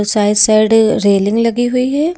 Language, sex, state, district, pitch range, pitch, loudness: Hindi, female, Uttar Pradesh, Lucknow, 210-245 Hz, 220 Hz, -12 LUFS